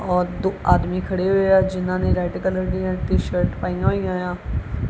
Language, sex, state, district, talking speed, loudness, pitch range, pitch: Punjabi, male, Punjab, Kapurthala, 185 wpm, -21 LUFS, 180-190 Hz, 185 Hz